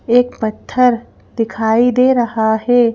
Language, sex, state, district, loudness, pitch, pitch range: Hindi, female, Madhya Pradesh, Bhopal, -15 LUFS, 235 Hz, 220-245 Hz